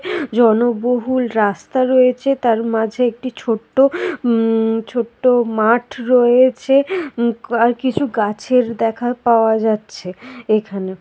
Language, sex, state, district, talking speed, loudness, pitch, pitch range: Bengali, female, West Bengal, Malda, 100 wpm, -16 LUFS, 240 Hz, 225-255 Hz